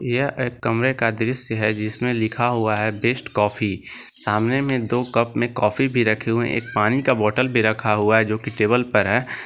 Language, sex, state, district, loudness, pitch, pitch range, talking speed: Hindi, male, Jharkhand, Garhwa, -20 LUFS, 115 Hz, 110-125 Hz, 215 wpm